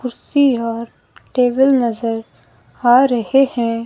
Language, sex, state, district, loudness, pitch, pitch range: Hindi, female, Himachal Pradesh, Shimla, -16 LUFS, 245 Hz, 230-265 Hz